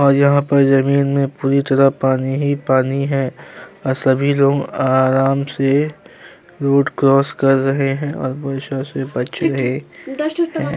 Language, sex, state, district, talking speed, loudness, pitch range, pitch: Hindi, male, Uttar Pradesh, Jyotiba Phule Nagar, 155 wpm, -17 LUFS, 135-140 Hz, 140 Hz